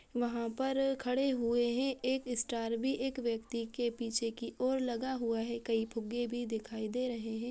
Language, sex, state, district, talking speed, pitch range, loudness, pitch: Hindi, female, Chhattisgarh, Balrampur, 190 wpm, 230-255 Hz, -35 LUFS, 240 Hz